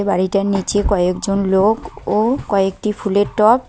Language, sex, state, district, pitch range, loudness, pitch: Bengali, female, West Bengal, Cooch Behar, 195-210 Hz, -17 LUFS, 200 Hz